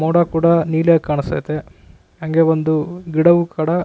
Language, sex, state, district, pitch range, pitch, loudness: Kannada, male, Karnataka, Raichur, 155-170 Hz, 160 Hz, -16 LUFS